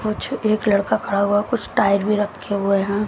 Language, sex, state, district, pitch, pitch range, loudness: Hindi, female, Haryana, Jhajjar, 205 Hz, 200-215 Hz, -20 LUFS